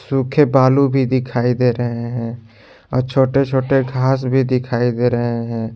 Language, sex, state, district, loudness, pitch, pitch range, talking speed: Hindi, male, Jharkhand, Garhwa, -17 LUFS, 125 Hz, 120-135 Hz, 165 wpm